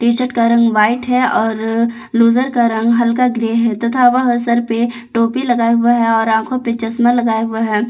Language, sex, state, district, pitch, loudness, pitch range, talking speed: Hindi, female, Jharkhand, Palamu, 235 Hz, -14 LUFS, 230-240 Hz, 205 wpm